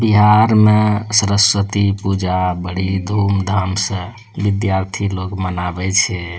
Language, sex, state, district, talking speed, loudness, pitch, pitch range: Angika, male, Bihar, Bhagalpur, 105 wpm, -16 LUFS, 100 Hz, 95-105 Hz